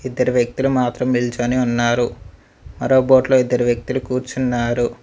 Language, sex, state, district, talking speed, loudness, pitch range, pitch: Telugu, male, Telangana, Mahabubabad, 120 wpm, -18 LUFS, 120-130 Hz, 125 Hz